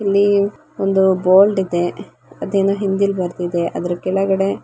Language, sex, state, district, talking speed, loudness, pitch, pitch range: Kannada, female, Karnataka, Belgaum, 130 wpm, -17 LUFS, 195 Hz, 180-200 Hz